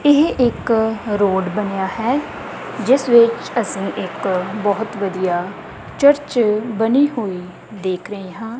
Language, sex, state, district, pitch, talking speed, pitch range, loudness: Punjabi, female, Punjab, Kapurthala, 215 Hz, 120 wpm, 195-240 Hz, -18 LUFS